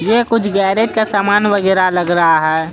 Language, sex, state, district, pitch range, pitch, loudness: Hindi, female, Bihar, Araria, 175-215 Hz, 200 Hz, -13 LUFS